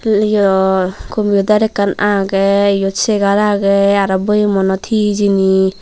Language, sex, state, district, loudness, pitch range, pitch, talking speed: Chakma, female, Tripura, Dhalai, -13 LUFS, 195-210 Hz, 200 Hz, 115 wpm